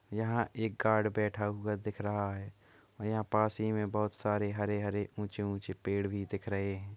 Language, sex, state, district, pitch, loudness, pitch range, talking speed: Hindi, male, Uttar Pradesh, Muzaffarnagar, 105 Hz, -35 LUFS, 100-110 Hz, 190 wpm